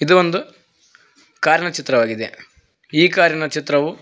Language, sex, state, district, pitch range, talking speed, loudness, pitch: Kannada, male, Karnataka, Koppal, 145-175 Hz, 105 wpm, -17 LUFS, 155 Hz